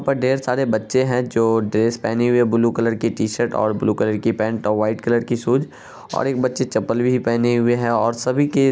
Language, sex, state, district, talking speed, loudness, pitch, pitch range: Hindi, male, Bihar, Araria, 250 wpm, -19 LUFS, 120 Hz, 115-125 Hz